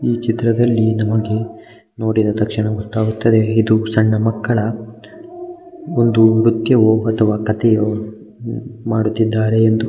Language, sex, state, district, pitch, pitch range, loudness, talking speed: Kannada, male, Karnataka, Mysore, 110 Hz, 110-115 Hz, -16 LUFS, 85 wpm